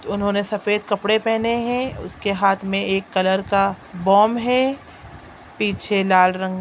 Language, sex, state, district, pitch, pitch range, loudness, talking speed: Hindi, female, Chhattisgarh, Raigarh, 200 Hz, 195-215 Hz, -20 LUFS, 145 wpm